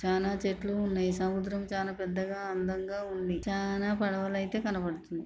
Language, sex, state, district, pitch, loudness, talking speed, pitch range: Telugu, female, Andhra Pradesh, Srikakulam, 195 Hz, -33 LUFS, 135 wpm, 185-200 Hz